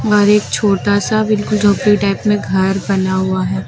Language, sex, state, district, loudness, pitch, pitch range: Hindi, female, Uttar Pradesh, Lucknow, -14 LUFS, 205 Hz, 190-210 Hz